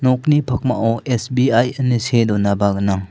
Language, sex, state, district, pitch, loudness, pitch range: Garo, male, Meghalaya, South Garo Hills, 120 Hz, -17 LUFS, 105-130 Hz